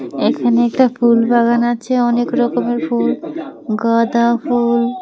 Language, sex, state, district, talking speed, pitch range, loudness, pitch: Bengali, female, Tripura, West Tripura, 110 wpm, 235-250 Hz, -15 LUFS, 240 Hz